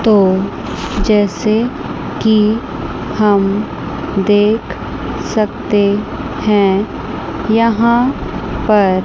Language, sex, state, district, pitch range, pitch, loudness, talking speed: Hindi, female, Chandigarh, Chandigarh, 200-220 Hz, 210 Hz, -15 LUFS, 60 wpm